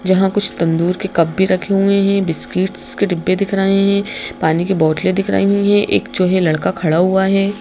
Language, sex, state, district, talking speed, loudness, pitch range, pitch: Hindi, female, Madhya Pradesh, Bhopal, 220 wpm, -15 LUFS, 180-195 Hz, 190 Hz